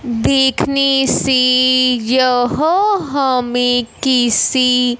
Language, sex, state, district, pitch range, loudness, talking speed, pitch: Hindi, female, Punjab, Fazilka, 245-270 Hz, -13 LUFS, 60 wpm, 255 Hz